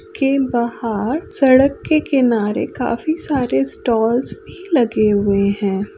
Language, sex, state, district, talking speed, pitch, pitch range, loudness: Bhojpuri, female, Uttar Pradesh, Deoria, 120 wpm, 245 Hz, 215-280 Hz, -17 LUFS